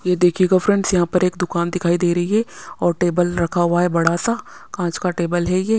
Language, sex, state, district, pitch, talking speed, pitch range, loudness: Hindi, female, Punjab, Pathankot, 175 Hz, 240 wpm, 175-185 Hz, -19 LUFS